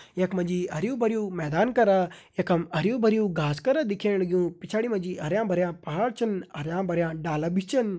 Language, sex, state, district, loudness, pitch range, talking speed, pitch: Hindi, male, Uttarakhand, Uttarkashi, -26 LUFS, 170-215 Hz, 190 wpm, 185 Hz